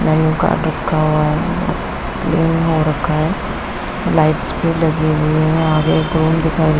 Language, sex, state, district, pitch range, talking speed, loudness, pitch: Hindi, female, Chhattisgarh, Bilaspur, 155-160 Hz, 125 wpm, -16 LUFS, 155 Hz